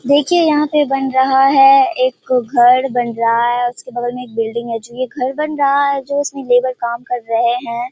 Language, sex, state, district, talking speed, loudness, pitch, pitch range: Hindi, female, Bihar, Purnia, 225 wpm, -15 LUFS, 255 Hz, 240-280 Hz